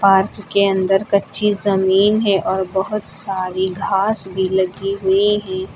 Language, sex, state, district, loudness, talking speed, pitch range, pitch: Hindi, female, Uttar Pradesh, Lucknow, -18 LUFS, 145 wpm, 190-205 Hz, 195 Hz